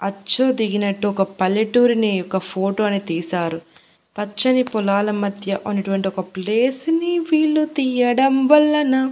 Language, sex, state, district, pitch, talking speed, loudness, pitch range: Telugu, female, Andhra Pradesh, Annamaya, 210 Hz, 125 wpm, -19 LUFS, 195-260 Hz